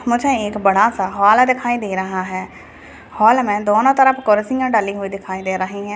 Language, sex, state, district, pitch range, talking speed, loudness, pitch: Hindi, female, Bihar, Purnia, 195-240 Hz, 200 wpm, -16 LUFS, 210 Hz